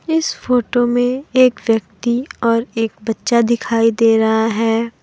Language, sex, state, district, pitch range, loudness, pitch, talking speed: Hindi, female, Jharkhand, Deoghar, 225-245 Hz, -16 LUFS, 230 Hz, 145 wpm